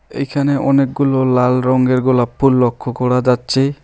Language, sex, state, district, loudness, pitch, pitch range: Bengali, male, West Bengal, Alipurduar, -15 LUFS, 130 Hz, 125-140 Hz